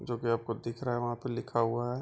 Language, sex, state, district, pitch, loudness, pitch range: Hindi, male, Bihar, Bhagalpur, 120 Hz, -33 LUFS, 115-125 Hz